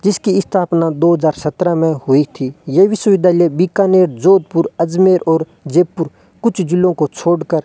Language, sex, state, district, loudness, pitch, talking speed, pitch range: Hindi, male, Rajasthan, Bikaner, -14 LUFS, 170 Hz, 155 wpm, 160-185 Hz